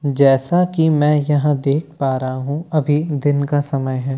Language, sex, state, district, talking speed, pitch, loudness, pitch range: Hindi, male, Bihar, Katihar, 185 wpm, 145 Hz, -17 LUFS, 135-150 Hz